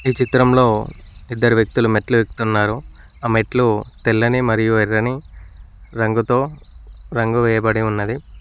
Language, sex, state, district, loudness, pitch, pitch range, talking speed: Telugu, male, Telangana, Mahabubabad, -17 LUFS, 115 Hz, 110-125 Hz, 105 wpm